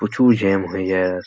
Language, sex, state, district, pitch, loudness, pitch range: Bengali, male, West Bengal, North 24 Parganas, 95 Hz, -18 LUFS, 90-105 Hz